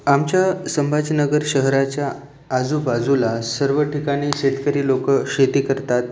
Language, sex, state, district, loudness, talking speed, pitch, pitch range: Marathi, male, Maharashtra, Aurangabad, -19 LUFS, 100 wpm, 140 Hz, 135-145 Hz